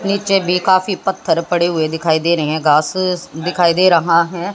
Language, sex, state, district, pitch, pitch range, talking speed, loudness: Hindi, female, Haryana, Jhajjar, 175 Hz, 160-185 Hz, 210 wpm, -15 LUFS